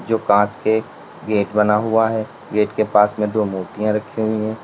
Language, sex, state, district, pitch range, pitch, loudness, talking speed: Hindi, male, Uttar Pradesh, Lalitpur, 105-110 Hz, 105 Hz, -19 LUFS, 205 wpm